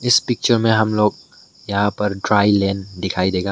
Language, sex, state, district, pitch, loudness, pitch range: Hindi, male, Meghalaya, West Garo Hills, 105 Hz, -18 LUFS, 100-110 Hz